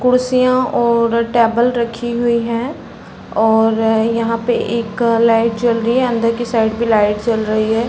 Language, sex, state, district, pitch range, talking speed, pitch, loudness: Hindi, female, Uttar Pradesh, Varanasi, 225-240 Hz, 165 wpm, 230 Hz, -15 LUFS